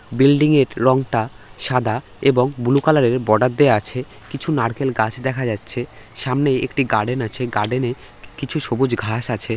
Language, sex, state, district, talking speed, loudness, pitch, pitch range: Bengali, male, West Bengal, North 24 Parganas, 170 wpm, -19 LUFS, 125 Hz, 110-135 Hz